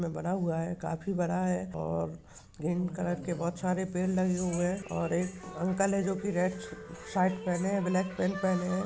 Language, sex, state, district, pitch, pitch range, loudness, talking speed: Hindi, male, Maharashtra, Pune, 180 Hz, 175-185 Hz, -32 LUFS, 190 wpm